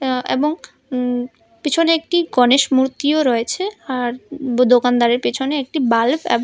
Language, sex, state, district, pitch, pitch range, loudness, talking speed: Bengali, female, Tripura, West Tripura, 260 Hz, 245-295 Hz, -17 LUFS, 130 wpm